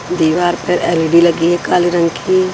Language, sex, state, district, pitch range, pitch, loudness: Hindi, female, Punjab, Pathankot, 170-175 Hz, 175 Hz, -13 LUFS